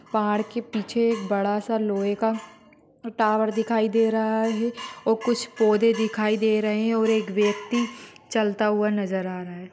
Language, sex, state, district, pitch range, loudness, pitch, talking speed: Magahi, female, Bihar, Gaya, 210-225 Hz, -24 LUFS, 220 Hz, 180 wpm